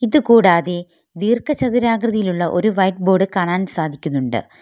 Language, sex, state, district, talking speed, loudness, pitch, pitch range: Malayalam, female, Kerala, Kollam, 105 wpm, -17 LUFS, 190 Hz, 175-230 Hz